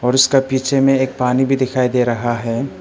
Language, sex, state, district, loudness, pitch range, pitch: Hindi, male, Arunachal Pradesh, Papum Pare, -16 LUFS, 125-135 Hz, 130 Hz